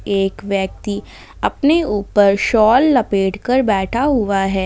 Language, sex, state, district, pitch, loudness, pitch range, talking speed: Hindi, female, Jharkhand, Ranchi, 205 Hz, -16 LUFS, 195-240 Hz, 130 wpm